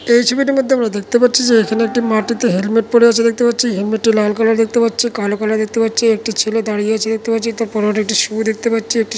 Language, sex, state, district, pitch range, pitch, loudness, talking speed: Bengali, male, West Bengal, Jalpaiguri, 220-235 Hz, 225 Hz, -15 LUFS, 240 wpm